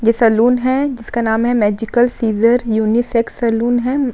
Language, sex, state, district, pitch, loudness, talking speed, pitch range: Hindi, female, Uttar Pradesh, Muzaffarnagar, 235 Hz, -15 LUFS, 160 wpm, 225-245 Hz